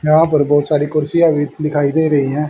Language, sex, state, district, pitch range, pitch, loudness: Hindi, male, Haryana, Charkhi Dadri, 145-155 Hz, 150 Hz, -15 LUFS